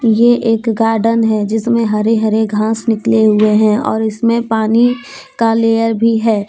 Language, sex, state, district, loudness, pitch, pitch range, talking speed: Hindi, female, Jharkhand, Deoghar, -13 LUFS, 225 Hz, 220-230 Hz, 165 wpm